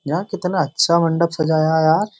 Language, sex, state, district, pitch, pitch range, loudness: Hindi, male, Uttar Pradesh, Jyotiba Phule Nagar, 165 Hz, 155-180 Hz, -18 LUFS